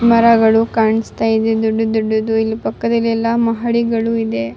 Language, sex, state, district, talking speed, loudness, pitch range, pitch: Kannada, female, Karnataka, Raichur, 105 wpm, -15 LUFS, 220-230 Hz, 225 Hz